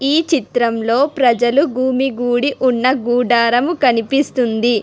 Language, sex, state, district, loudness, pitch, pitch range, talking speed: Telugu, female, Telangana, Hyderabad, -15 LUFS, 250 Hz, 240-270 Hz, 100 wpm